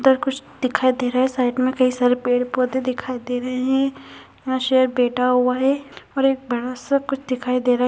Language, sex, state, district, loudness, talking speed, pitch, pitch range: Hindi, female, Bihar, Purnia, -21 LUFS, 220 wpm, 255 Hz, 250-265 Hz